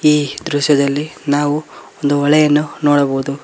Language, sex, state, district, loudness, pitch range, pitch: Kannada, male, Karnataka, Koppal, -15 LUFS, 145-150 Hz, 145 Hz